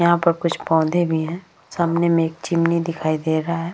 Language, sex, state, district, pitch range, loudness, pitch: Hindi, female, Bihar, Vaishali, 160-170 Hz, -20 LUFS, 165 Hz